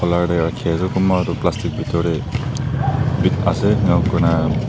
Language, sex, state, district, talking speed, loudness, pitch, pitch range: Nagamese, male, Nagaland, Dimapur, 115 wpm, -18 LUFS, 95 Hz, 85-130 Hz